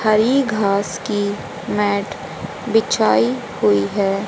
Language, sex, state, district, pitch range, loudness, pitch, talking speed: Hindi, female, Haryana, Rohtak, 195-215 Hz, -19 LUFS, 205 Hz, 100 wpm